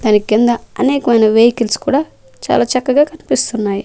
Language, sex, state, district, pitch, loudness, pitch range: Telugu, female, Andhra Pradesh, Manyam, 235 Hz, -14 LUFS, 220-270 Hz